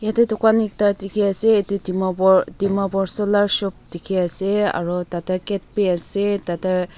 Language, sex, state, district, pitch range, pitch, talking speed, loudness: Nagamese, female, Nagaland, Dimapur, 185-205 Hz, 200 Hz, 170 wpm, -18 LUFS